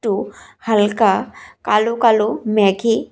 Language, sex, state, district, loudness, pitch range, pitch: Bengali, female, Tripura, West Tripura, -16 LUFS, 210-225 Hz, 215 Hz